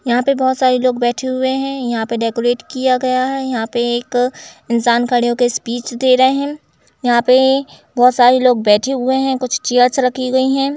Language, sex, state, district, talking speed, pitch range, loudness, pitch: Hindi, female, Uttar Pradesh, Jalaun, 200 wpm, 240-260 Hz, -15 LUFS, 255 Hz